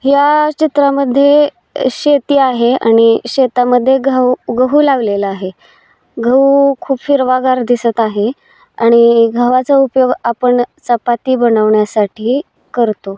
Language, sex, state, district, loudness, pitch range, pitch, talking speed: Marathi, female, Maharashtra, Solapur, -12 LUFS, 235-275 Hz, 255 Hz, 100 wpm